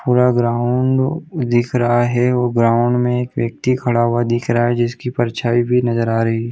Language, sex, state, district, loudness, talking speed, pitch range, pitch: Hindi, male, Chhattisgarh, Bilaspur, -17 LUFS, 255 wpm, 120-125 Hz, 120 Hz